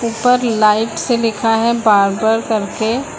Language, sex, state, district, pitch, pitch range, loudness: Hindi, female, Uttar Pradesh, Lucknow, 225 Hz, 220-235 Hz, -15 LUFS